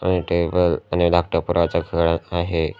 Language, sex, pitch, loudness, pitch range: Marathi, male, 85 Hz, -20 LUFS, 85-90 Hz